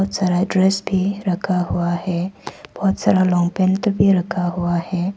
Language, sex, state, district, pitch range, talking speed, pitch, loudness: Hindi, female, Arunachal Pradesh, Papum Pare, 175-195 Hz, 160 wpm, 185 Hz, -19 LUFS